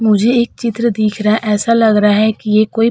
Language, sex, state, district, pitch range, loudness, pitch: Hindi, female, Uttar Pradesh, Hamirpur, 210-230 Hz, -13 LUFS, 220 Hz